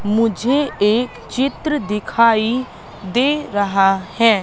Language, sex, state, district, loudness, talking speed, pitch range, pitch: Hindi, female, Madhya Pradesh, Katni, -17 LUFS, 95 wpm, 205-260 Hz, 225 Hz